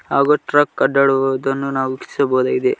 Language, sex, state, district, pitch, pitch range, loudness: Kannada, male, Karnataka, Koppal, 140 Hz, 135-145 Hz, -17 LUFS